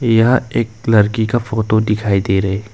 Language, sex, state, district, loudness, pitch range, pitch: Hindi, male, Arunachal Pradesh, Longding, -15 LUFS, 105-115 Hz, 110 Hz